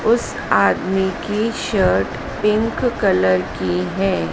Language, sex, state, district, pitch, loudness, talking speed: Hindi, female, Madhya Pradesh, Dhar, 195 Hz, -19 LUFS, 110 wpm